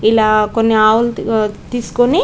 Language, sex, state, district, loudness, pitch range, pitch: Telugu, female, Telangana, Karimnagar, -14 LUFS, 215-240 Hz, 225 Hz